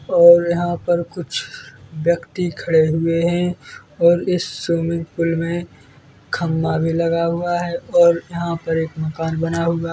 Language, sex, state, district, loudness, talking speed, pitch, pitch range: Hindi, male, Chhattisgarh, Bilaspur, -19 LUFS, 150 wpm, 170 Hz, 165-175 Hz